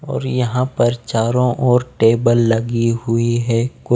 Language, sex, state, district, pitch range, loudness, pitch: Hindi, male, Bihar, Patna, 115-125 Hz, -17 LUFS, 120 Hz